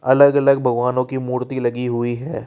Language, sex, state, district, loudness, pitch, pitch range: Hindi, male, Rajasthan, Jaipur, -18 LUFS, 125 Hz, 125-130 Hz